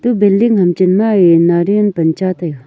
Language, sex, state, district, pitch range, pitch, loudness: Wancho, female, Arunachal Pradesh, Longding, 170-210 Hz, 185 Hz, -12 LUFS